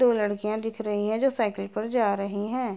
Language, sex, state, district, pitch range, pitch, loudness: Hindi, female, Uttar Pradesh, Gorakhpur, 205-230 Hz, 215 Hz, -27 LUFS